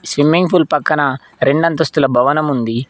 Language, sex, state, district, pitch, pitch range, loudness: Telugu, male, Telangana, Mahabubabad, 145 Hz, 135-160 Hz, -14 LUFS